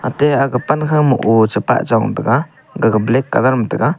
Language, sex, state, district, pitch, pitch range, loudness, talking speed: Wancho, male, Arunachal Pradesh, Longding, 130 Hz, 115-145 Hz, -15 LUFS, 195 wpm